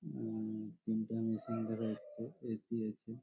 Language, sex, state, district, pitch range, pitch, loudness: Bengali, male, West Bengal, Malda, 110-115 Hz, 110 Hz, -41 LUFS